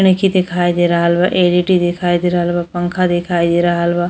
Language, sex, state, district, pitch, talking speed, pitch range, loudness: Bhojpuri, female, Uttar Pradesh, Deoria, 175 Hz, 220 wpm, 175-180 Hz, -15 LUFS